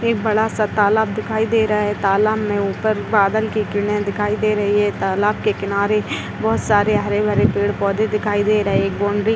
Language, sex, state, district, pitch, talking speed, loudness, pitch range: Hindi, female, Uttar Pradesh, Etah, 210 Hz, 210 wpm, -18 LUFS, 205-215 Hz